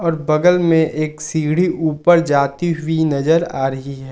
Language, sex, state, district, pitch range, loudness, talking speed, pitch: Hindi, male, Jharkhand, Ranchi, 150-165 Hz, -16 LUFS, 160 wpm, 160 Hz